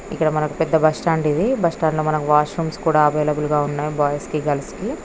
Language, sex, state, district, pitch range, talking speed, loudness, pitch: Telugu, female, Andhra Pradesh, Krishna, 150-160 Hz, 200 wpm, -19 LUFS, 155 Hz